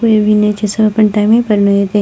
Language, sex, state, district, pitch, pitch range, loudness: Maithili, female, Bihar, Purnia, 210 Hz, 210-215 Hz, -11 LUFS